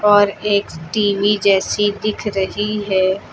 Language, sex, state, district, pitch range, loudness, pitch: Hindi, female, Uttar Pradesh, Lucknow, 195-210 Hz, -17 LUFS, 205 Hz